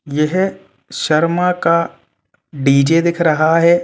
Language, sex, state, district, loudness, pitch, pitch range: Hindi, male, Uttar Pradesh, Etah, -15 LUFS, 165 Hz, 155-170 Hz